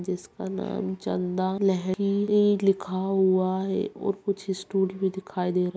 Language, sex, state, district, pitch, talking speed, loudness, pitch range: Hindi, female, Bihar, Bhagalpur, 190 Hz, 165 wpm, -26 LUFS, 185-200 Hz